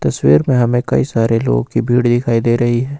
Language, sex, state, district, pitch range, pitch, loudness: Hindi, male, Jharkhand, Ranchi, 115-120 Hz, 120 Hz, -14 LUFS